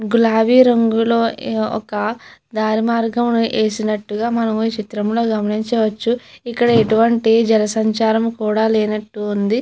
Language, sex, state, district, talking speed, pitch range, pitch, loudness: Telugu, female, Andhra Pradesh, Chittoor, 95 wpm, 215-230 Hz, 225 Hz, -17 LUFS